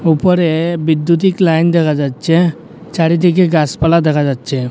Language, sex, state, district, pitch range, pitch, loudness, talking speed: Bengali, male, Assam, Hailakandi, 155-170 Hz, 165 Hz, -13 LUFS, 115 wpm